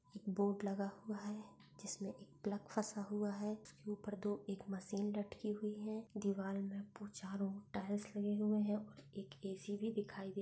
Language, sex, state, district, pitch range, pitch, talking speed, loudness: Hindi, female, Maharashtra, Pune, 200-210 Hz, 205 Hz, 185 wpm, -43 LUFS